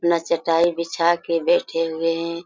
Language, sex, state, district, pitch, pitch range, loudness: Hindi, female, Jharkhand, Sahebganj, 170 Hz, 165-170 Hz, -21 LUFS